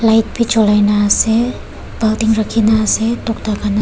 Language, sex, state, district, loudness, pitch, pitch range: Nagamese, female, Nagaland, Kohima, -14 LUFS, 220 Hz, 210-225 Hz